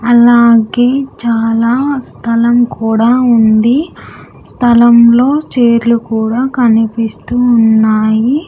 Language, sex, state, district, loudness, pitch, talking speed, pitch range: Telugu, female, Andhra Pradesh, Sri Satya Sai, -10 LUFS, 235 Hz, 70 wpm, 225-245 Hz